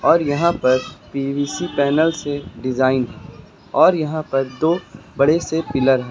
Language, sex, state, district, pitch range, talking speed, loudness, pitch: Hindi, male, Uttar Pradesh, Lucknow, 135-160 Hz, 145 wpm, -19 LUFS, 145 Hz